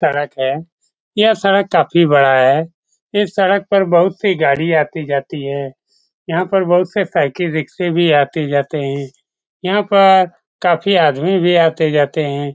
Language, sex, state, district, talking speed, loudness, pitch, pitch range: Hindi, male, Bihar, Saran, 150 wpm, -15 LUFS, 165 Hz, 145-190 Hz